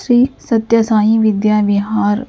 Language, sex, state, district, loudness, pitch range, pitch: Telugu, female, Andhra Pradesh, Sri Satya Sai, -14 LUFS, 210-230 Hz, 220 Hz